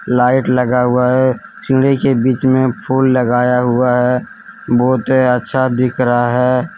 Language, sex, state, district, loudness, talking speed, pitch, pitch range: Hindi, male, Jharkhand, Deoghar, -14 LUFS, 150 wpm, 125 Hz, 125-130 Hz